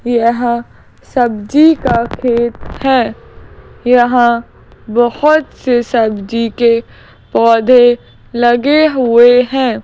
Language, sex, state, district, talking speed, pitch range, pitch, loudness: Hindi, female, Madhya Pradesh, Bhopal, 85 wpm, 235-250 Hz, 240 Hz, -12 LUFS